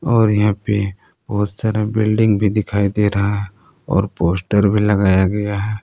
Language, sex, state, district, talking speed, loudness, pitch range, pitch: Hindi, male, Jharkhand, Palamu, 175 wpm, -17 LUFS, 100-105 Hz, 105 Hz